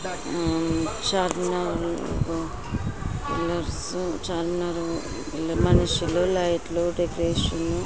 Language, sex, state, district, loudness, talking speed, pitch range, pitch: Telugu, female, Andhra Pradesh, Srikakulam, -26 LUFS, 55 wpm, 160-175 Hz, 170 Hz